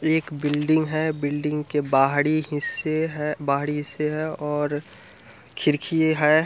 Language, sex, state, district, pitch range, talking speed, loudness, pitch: Hindi, male, Bihar, Muzaffarpur, 145-155 Hz, 120 wpm, -22 LUFS, 150 Hz